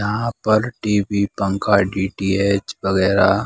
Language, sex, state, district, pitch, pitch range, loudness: Hindi, male, Bihar, Saran, 100 Hz, 95-105 Hz, -19 LUFS